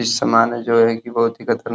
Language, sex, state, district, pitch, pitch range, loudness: Hindi, male, Uttar Pradesh, Hamirpur, 115 Hz, 115-120 Hz, -17 LUFS